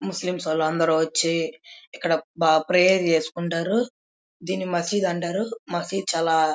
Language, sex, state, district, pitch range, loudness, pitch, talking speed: Telugu, male, Andhra Pradesh, Krishna, 160-185 Hz, -23 LUFS, 170 Hz, 110 wpm